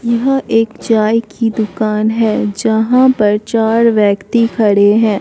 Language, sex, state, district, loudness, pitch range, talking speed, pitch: Hindi, female, Bihar, Katihar, -13 LUFS, 210-230 Hz, 140 wpm, 225 Hz